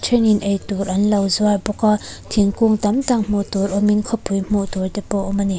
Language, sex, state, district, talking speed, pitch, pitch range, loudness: Mizo, female, Mizoram, Aizawl, 235 wpm, 205 Hz, 195-210 Hz, -19 LUFS